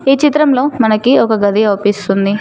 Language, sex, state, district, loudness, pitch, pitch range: Telugu, female, Telangana, Mahabubabad, -12 LUFS, 220 Hz, 205-270 Hz